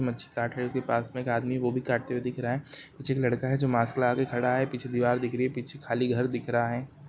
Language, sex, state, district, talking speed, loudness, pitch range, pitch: Hindi, male, Jharkhand, Jamtara, 305 wpm, -29 LUFS, 120-130 Hz, 125 Hz